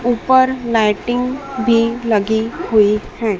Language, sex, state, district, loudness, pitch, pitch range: Hindi, female, Madhya Pradesh, Dhar, -16 LUFS, 230 Hz, 220-250 Hz